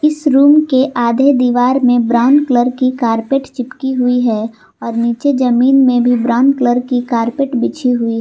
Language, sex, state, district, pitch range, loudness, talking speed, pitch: Hindi, female, Jharkhand, Palamu, 240-270 Hz, -13 LUFS, 185 wpm, 250 Hz